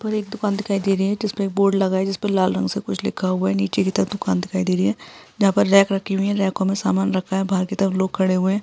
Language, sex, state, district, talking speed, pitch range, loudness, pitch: Hindi, female, Rajasthan, Nagaur, 320 wpm, 185-200 Hz, -21 LUFS, 195 Hz